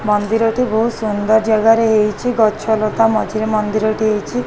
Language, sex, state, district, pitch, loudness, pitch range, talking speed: Odia, female, Odisha, Khordha, 220 Hz, -15 LUFS, 215-225 Hz, 135 wpm